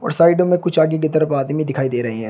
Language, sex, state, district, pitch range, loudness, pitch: Hindi, male, Uttar Pradesh, Shamli, 135-165 Hz, -17 LUFS, 155 Hz